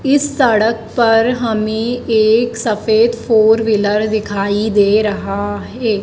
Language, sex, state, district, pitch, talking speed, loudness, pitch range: Hindi, female, Madhya Pradesh, Dhar, 220 Hz, 120 wpm, -14 LUFS, 210-230 Hz